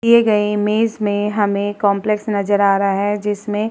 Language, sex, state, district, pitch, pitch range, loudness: Hindi, female, Uttar Pradesh, Muzaffarnagar, 205 Hz, 205-215 Hz, -17 LUFS